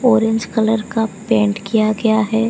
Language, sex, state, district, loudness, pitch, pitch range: Hindi, female, Odisha, Sambalpur, -17 LUFS, 220 Hz, 215-225 Hz